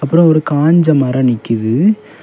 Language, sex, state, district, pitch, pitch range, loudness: Tamil, male, Tamil Nadu, Kanyakumari, 150 Hz, 125-165 Hz, -12 LUFS